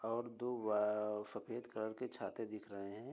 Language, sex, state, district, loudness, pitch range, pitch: Hindi, male, Uttar Pradesh, Budaun, -42 LUFS, 105-120 Hz, 110 Hz